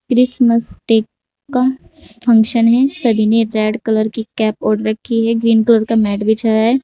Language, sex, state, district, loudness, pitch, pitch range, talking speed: Hindi, female, Uttar Pradesh, Saharanpur, -14 LUFS, 230 Hz, 220-235 Hz, 175 wpm